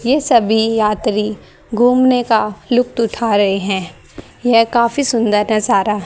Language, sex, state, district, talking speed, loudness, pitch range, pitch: Hindi, female, Haryana, Charkhi Dadri, 130 wpm, -15 LUFS, 210-240 Hz, 225 Hz